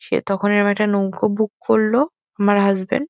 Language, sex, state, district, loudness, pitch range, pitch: Bengali, female, West Bengal, Kolkata, -19 LUFS, 200-220 Hz, 205 Hz